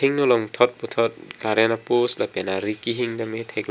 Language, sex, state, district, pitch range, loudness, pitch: Karbi, male, Assam, Karbi Anglong, 110-120 Hz, -23 LUFS, 115 Hz